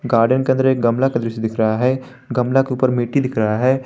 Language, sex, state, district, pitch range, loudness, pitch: Hindi, male, Jharkhand, Garhwa, 115-130 Hz, -18 LUFS, 130 Hz